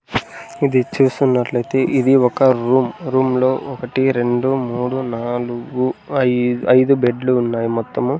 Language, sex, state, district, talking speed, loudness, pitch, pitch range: Telugu, male, Andhra Pradesh, Sri Satya Sai, 115 wpm, -17 LUFS, 125 Hz, 120-130 Hz